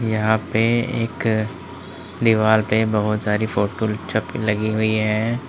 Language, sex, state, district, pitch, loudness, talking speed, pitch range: Hindi, male, Uttar Pradesh, Lalitpur, 110 Hz, -20 LUFS, 130 wpm, 105-110 Hz